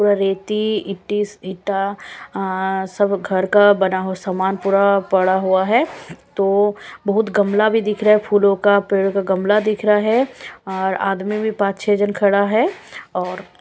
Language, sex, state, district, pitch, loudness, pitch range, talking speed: Hindi, female, Punjab, Kapurthala, 200 Hz, -18 LUFS, 190-210 Hz, 170 wpm